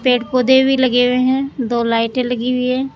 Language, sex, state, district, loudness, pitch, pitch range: Hindi, female, Rajasthan, Jaipur, -16 LUFS, 250 Hz, 245-260 Hz